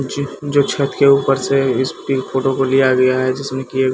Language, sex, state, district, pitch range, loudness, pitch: Hindi, male, Bihar, Katihar, 130-140 Hz, -16 LUFS, 135 Hz